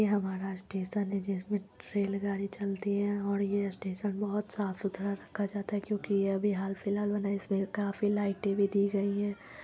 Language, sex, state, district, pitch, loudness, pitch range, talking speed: Hindi, female, Bihar, Lakhisarai, 200 Hz, -33 LUFS, 195-205 Hz, 200 wpm